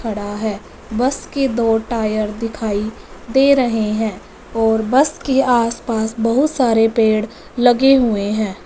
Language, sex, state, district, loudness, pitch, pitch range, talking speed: Hindi, female, Punjab, Fazilka, -17 LUFS, 225 Hz, 215-250 Hz, 140 wpm